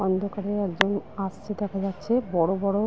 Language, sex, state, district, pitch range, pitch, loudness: Bengali, female, West Bengal, Dakshin Dinajpur, 195-205 Hz, 200 Hz, -27 LUFS